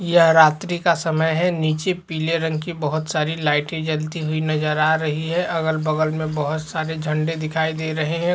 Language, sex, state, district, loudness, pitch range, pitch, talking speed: Chhattisgarhi, male, Chhattisgarh, Jashpur, -21 LUFS, 155-165 Hz, 160 Hz, 195 wpm